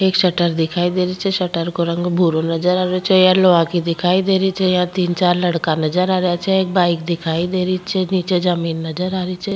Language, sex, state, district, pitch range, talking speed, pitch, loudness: Rajasthani, female, Rajasthan, Churu, 170-185 Hz, 250 wpm, 180 Hz, -17 LUFS